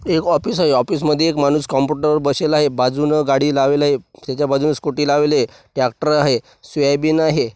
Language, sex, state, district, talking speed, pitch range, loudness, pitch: Marathi, male, Maharashtra, Washim, 175 wpm, 140-150 Hz, -17 LUFS, 145 Hz